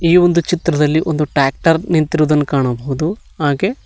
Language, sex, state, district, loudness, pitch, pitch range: Kannada, male, Karnataka, Koppal, -15 LUFS, 155 Hz, 145-170 Hz